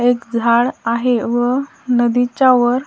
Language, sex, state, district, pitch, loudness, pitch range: Marathi, female, Maharashtra, Washim, 245 Hz, -16 LUFS, 235-250 Hz